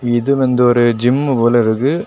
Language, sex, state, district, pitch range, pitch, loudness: Tamil, male, Tamil Nadu, Kanyakumari, 120-135 Hz, 125 Hz, -14 LUFS